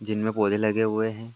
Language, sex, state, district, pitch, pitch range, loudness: Hindi, male, Uttar Pradesh, Etah, 110 Hz, 105-110 Hz, -25 LUFS